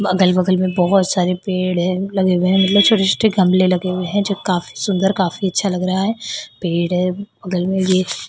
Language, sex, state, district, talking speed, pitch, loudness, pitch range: Hindi, female, Odisha, Khordha, 210 wpm, 185 Hz, -17 LUFS, 180-195 Hz